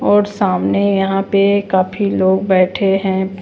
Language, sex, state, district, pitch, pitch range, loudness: Hindi, female, Bihar, West Champaran, 195 Hz, 190-200 Hz, -15 LUFS